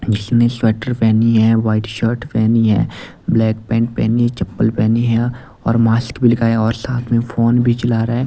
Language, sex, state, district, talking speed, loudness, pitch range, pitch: Hindi, male, Delhi, New Delhi, 195 wpm, -16 LUFS, 110-120 Hz, 115 Hz